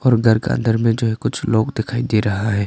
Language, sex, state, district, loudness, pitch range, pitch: Hindi, male, Arunachal Pradesh, Papum Pare, -18 LUFS, 110-120 Hz, 115 Hz